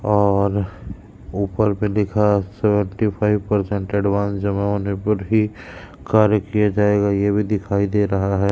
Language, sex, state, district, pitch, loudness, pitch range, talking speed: Hindi, male, Madhya Pradesh, Katni, 100 Hz, -19 LUFS, 100-105 Hz, 150 wpm